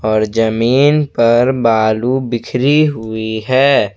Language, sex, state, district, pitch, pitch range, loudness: Hindi, male, Jharkhand, Ranchi, 120 Hz, 110-130 Hz, -13 LUFS